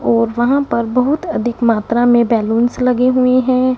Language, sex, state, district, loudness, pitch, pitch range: Hindi, female, Punjab, Fazilka, -14 LUFS, 240 Hz, 230-255 Hz